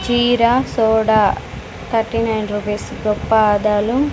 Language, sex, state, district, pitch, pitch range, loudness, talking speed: Telugu, female, Andhra Pradesh, Sri Satya Sai, 220 Hz, 210-235 Hz, -17 LUFS, 100 wpm